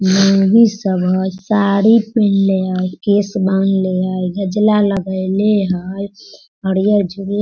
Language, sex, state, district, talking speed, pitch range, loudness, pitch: Hindi, female, Bihar, Sitamarhi, 80 wpm, 190-205 Hz, -15 LUFS, 195 Hz